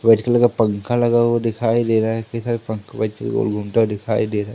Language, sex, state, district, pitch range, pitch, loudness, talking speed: Hindi, male, Madhya Pradesh, Umaria, 110-120 Hz, 115 Hz, -19 LUFS, 250 wpm